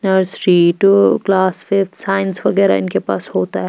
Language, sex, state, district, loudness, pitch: Hindi, female, Bihar, Patna, -15 LUFS, 190 Hz